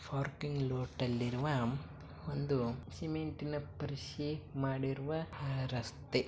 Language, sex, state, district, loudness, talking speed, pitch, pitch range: Kannada, male, Karnataka, Bijapur, -38 LUFS, 75 wpm, 140 Hz, 130-150 Hz